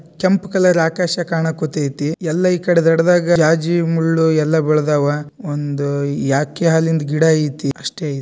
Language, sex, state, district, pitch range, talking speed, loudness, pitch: Kannada, male, Karnataka, Dharwad, 150-170 Hz, 125 wpm, -16 LUFS, 160 Hz